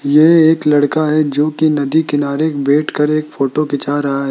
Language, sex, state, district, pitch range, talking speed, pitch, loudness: Hindi, male, Rajasthan, Jaipur, 145-155 Hz, 210 wpm, 150 Hz, -14 LUFS